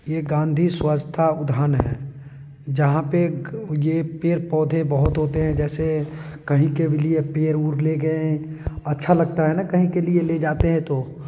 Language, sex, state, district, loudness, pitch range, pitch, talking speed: Hindi, male, Bihar, East Champaran, -21 LUFS, 150-160 Hz, 155 Hz, 170 wpm